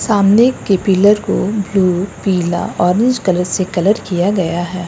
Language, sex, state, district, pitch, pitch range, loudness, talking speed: Hindi, female, Uttar Pradesh, Lucknow, 195 Hz, 180-205 Hz, -14 LUFS, 160 wpm